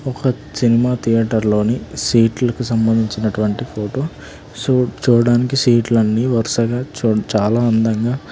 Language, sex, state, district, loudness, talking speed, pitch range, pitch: Telugu, male, Telangana, Karimnagar, -17 LUFS, 100 wpm, 110-125 Hz, 115 Hz